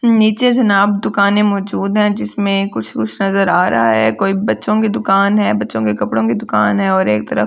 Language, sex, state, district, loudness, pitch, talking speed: Hindi, female, Delhi, New Delhi, -14 LUFS, 195 Hz, 225 wpm